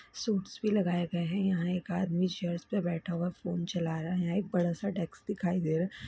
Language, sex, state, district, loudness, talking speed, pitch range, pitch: Hindi, female, Chhattisgarh, Bilaspur, -32 LUFS, 245 wpm, 170-190 Hz, 175 Hz